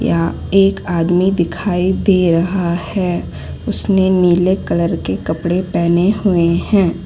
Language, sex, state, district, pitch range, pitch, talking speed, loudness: Hindi, female, Gujarat, Valsad, 170-190 Hz, 175 Hz, 125 wpm, -15 LUFS